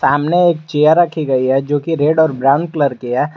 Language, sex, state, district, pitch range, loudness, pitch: Hindi, male, Jharkhand, Garhwa, 135-160 Hz, -14 LUFS, 150 Hz